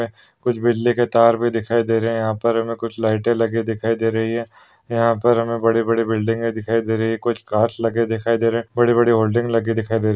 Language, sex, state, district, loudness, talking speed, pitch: Hindi, male, Maharashtra, Pune, -19 LUFS, 235 wpm, 115 Hz